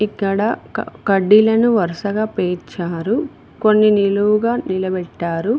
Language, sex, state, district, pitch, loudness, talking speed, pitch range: Telugu, female, Telangana, Mahabubabad, 205 Hz, -17 LUFS, 75 wpm, 185-215 Hz